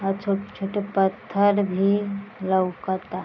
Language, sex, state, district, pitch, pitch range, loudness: Bhojpuri, female, Bihar, East Champaran, 195 Hz, 190-200 Hz, -24 LUFS